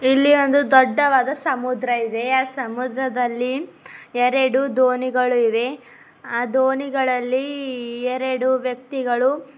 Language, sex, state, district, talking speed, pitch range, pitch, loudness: Kannada, female, Karnataka, Bidar, 90 wpm, 245-270 Hz, 260 Hz, -20 LUFS